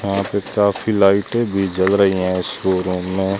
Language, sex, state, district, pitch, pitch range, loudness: Hindi, male, Rajasthan, Jaisalmer, 100 Hz, 95-100 Hz, -18 LUFS